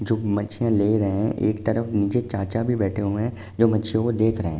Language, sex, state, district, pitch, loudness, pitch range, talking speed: Hindi, male, Uttar Pradesh, Jalaun, 110 Hz, -23 LUFS, 100-115 Hz, 250 wpm